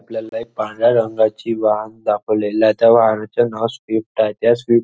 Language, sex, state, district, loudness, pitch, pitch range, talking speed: Marathi, male, Maharashtra, Nagpur, -17 LUFS, 110 Hz, 110-115 Hz, 185 wpm